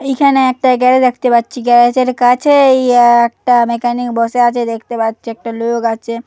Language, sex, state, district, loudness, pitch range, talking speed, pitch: Bengali, female, West Bengal, Paschim Medinipur, -12 LUFS, 235-255 Hz, 160 wpm, 240 Hz